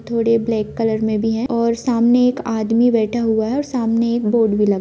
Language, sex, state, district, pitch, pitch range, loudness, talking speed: Hindi, female, Jharkhand, Jamtara, 230 Hz, 220-235 Hz, -17 LUFS, 235 wpm